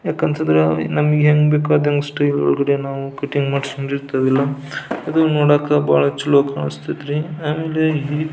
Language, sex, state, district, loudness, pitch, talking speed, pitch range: Kannada, male, Karnataka, Belgaum, -18 LUFS, 145 Hz, 130 wpm, 135-150 Hz